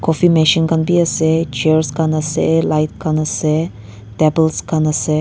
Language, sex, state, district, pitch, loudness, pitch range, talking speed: Nagamese, female, Nagaland, Dimapur, 155 Hz, -15 LUFS, 155-160 Hz, 150 wpm